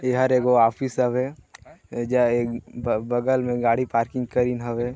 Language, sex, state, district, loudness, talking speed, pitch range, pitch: Hindi, male, Chhattisgarh, Sarguja, -23 LUFS, 155 wpm, 120-125 Hz, 125 Hz